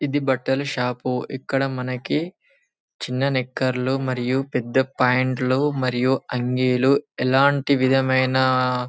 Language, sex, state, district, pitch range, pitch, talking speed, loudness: Telugu, male, Telangana, Karimnagar, 125-135 Hz, 130 Hz, 110 wpm, -21 LUFS